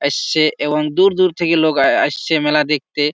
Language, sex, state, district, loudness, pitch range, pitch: Bengali, male, West Bengal, Malda, -15 LUFS, 150-165 Hz, 150 Hz